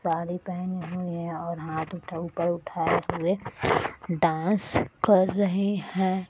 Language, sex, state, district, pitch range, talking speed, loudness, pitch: Hindi, female, Bihar, Sitamarhi, 170-185 Hz, 155 wpm, -27 LUFS, 175 Hz